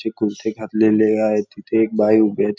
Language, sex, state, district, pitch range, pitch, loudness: Marathi, male, Maharashtra, Nagpur, 105-110 Hz, 110 Hz, -18 LUFS